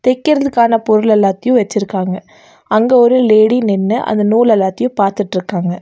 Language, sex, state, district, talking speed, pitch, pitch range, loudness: Tamil, female, Tamil Nadu, Nilgiris, 115 wpm, 215 Hz, 200-240 Hz, -13 LUFS